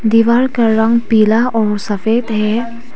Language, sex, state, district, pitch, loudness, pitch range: Hindi, female, Arunachal Pradesh, Papum Pare, 225 Hz, -13 LUFS, 220-235 Hz